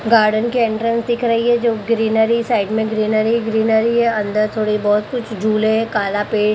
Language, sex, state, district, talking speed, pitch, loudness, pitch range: Hindi, female, Maharashtra, Mumbai Suburban, 190 wpm, 220 Hz, -17 LUFS, 215-230 Hz